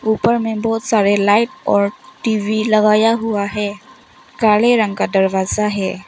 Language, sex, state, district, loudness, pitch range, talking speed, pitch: Hindi, female, Arunachal Pradesh, Longding, -16 LUFS, 205-225 Hz, 150 wpm, 215 Hz